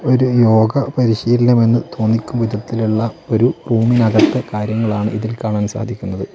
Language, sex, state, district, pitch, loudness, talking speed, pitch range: Malayalam, male, Kerala, Wayanad, 115 Hz, -16 LUFS, 115 wpm, 110-120 Hz